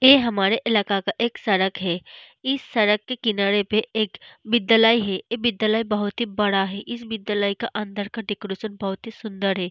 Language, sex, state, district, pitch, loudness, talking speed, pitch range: Hindi, female, Bihar, Vaishali, 215 Hz, -22 LUFS, 185 wpm, 200-230 Hz